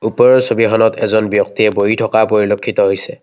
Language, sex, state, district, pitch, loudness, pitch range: Assamese, male, Assam, Kamrup Metropolitan, 110 Hz, -13 LUFS, 105-110 Hz